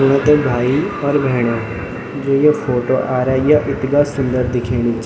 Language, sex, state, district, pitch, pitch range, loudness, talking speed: Garhwali, male, Uttarakhand, Tehri Garhwal, 130 Hz, 125-140 Hz, -16 LUFS, 165 wpm